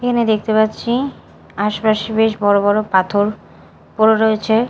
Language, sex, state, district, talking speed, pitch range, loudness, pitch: Bengali, female, Odisha, Malkangiri, 130 wpm, 210-220 Hz, -16 LUFS, 220 Hz